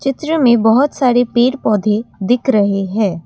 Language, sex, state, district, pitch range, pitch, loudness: Hindi, female, Assam, Kamrup Metropolitan, 210-265 Hz, 240 Hz, -14 LUFS